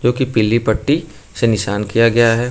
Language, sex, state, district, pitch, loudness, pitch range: Hindi, male, Uttar Pradesh, Lucknow, 115 Hz, -16 LUFS, 110-120 Hz